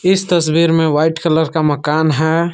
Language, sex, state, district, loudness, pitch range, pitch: Hindi, male, Jharkhand, Palamu, -14 LUFS, 155-170 Hz, 160 Hz